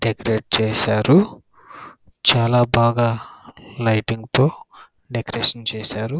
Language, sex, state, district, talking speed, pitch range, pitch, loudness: Telugu, male, Andhra Pradesh, Krishna, 85 wpm, 110-120 Hz, 115 Hz, -18 LUFS